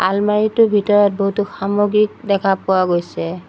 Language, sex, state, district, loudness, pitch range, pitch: Assamese, female, Assam, Sonitpur, -16 LUFS, 190-210 Hz, 200 Hz